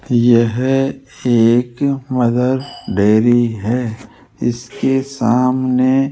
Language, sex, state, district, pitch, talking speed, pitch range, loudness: Hindi, male, Rajasthan, Jaipur, 125 Hz, 80 wpm, 120-130 Hz, -16 LUFS